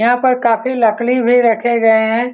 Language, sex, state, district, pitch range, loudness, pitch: Hindi, male, Bihar, Saran, 225-245 Hz, -13 LUFS, 240 Hz